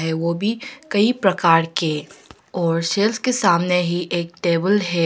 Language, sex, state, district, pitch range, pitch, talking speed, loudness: Hindi, female, Arunachal Pradesh, Papum Pare, 170-205 Hz, 175 Hz, 140 wpm, -19 LUFS